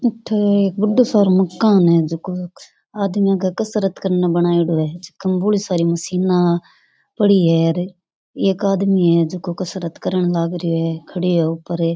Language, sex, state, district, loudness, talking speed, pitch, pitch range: Rajasthani, female, Rajasthan, Churu, -18 LUFS, 155 wpm, 180 Hz, 170-195 Hz